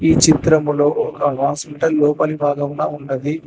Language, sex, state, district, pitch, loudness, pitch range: Telugu, male, Telangana, Hyderabad, 150 Hz, -17 LUFS, 145-155 Hz